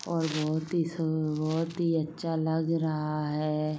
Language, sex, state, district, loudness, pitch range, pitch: Hindi, female, Uttar Pradesh, Muzaffarnagar, -30 LUFS, 155-165 Hz, 160 Hz